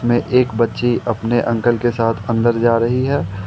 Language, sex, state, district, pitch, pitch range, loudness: Hindi, male, Jharkhand, Ranchi, 120 Hz, 115-120 Hz, -17 LUFS